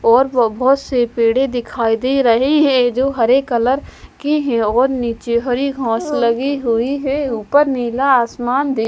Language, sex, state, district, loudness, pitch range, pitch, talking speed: Hindi, female, Delhi, New Delhi, -16 LUFS, 235-270 Hz, 250 Hz, 155 wpm